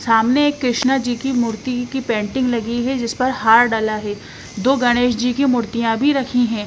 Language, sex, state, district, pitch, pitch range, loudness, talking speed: Hindi, female, Bihar, West Champaran, 245 Hz, 225-260 Hz, -18 LUFS, 205 wpm